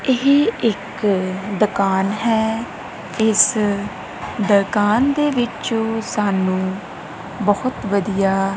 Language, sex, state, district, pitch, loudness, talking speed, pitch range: Punjabi, female, Punjab, Kapurthala, 205 Hz, -18 LUFS, 75 wpm, 195-225 Hz